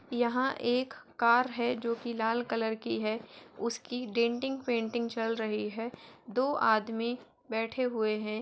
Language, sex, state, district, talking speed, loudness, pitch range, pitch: Hindi, male, Uttar Pradesh, Etah, 140 wpm, -32 LUFS, 225-245 Hz, 235 Hz